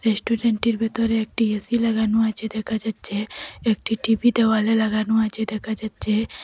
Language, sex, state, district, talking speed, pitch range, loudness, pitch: Bengali, female, Assam, Hailakandi, 150 wpm, 220-225 Hz, -22 LUFS, 220 Hz